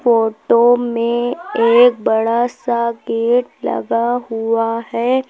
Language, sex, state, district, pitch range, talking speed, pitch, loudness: Hindi, female, Uttar Pradesh, Lucknow, 230-245 Hz, 100 wpm, 235 Hz, -16 LUFS